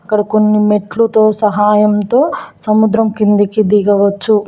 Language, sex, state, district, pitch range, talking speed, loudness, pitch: Telugu, female, Telangana, Mahabubabad, 210-215 Hz, 95 wpm, -12 LUFS, 210 Hz